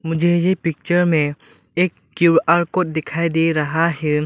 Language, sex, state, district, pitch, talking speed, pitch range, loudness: Hindi, male, Arunachal Pradesh, Lower Dibang Valley, 165 Hz, 155 wpm, 160-175 Hz, -18 LUFS